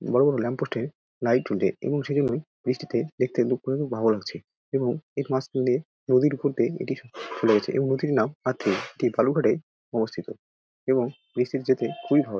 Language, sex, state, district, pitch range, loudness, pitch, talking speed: Bengali, male, West Bengal, Dakshin Dinajpur, 120-140 Hz, -26 LUFS, 130 Hz, 190 wpm